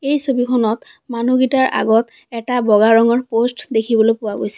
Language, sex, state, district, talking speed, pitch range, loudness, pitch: Assamese, female, Assam, Kamrup Metropolitan, 155 wpm, 225-255 Hz, -16 LUFS, 235 Hz